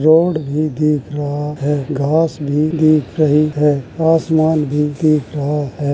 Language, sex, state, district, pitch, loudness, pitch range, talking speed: Hindi, male, Uttar Pradesh, Jalaun, 150 Hz, -16 LUFS, 145-155 Hz, 150 wpm